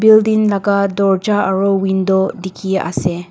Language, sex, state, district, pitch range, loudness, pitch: Nagamese, female, Nagaland, Dimapur, 190-200 Hz, -15 LUFS, 195 Hz